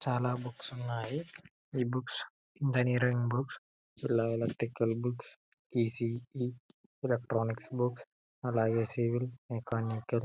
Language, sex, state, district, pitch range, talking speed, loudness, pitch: Telugu, male, Telangana, Karimnagar, 115-125 Hz, 105 wpm, -34 LUFS, 125 Hz